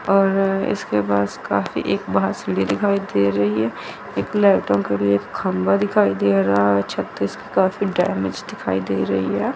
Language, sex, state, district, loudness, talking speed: Hindi, female, Chandigarh, Chandigarh, -20 LUFS, 180 wpm